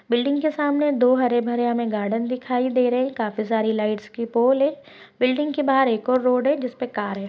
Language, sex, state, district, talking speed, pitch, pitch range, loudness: Hindi, female, Chhattisgarh, Bastar, 230 wpm, 250 Hz, 230-265 Hz, -22 LUFS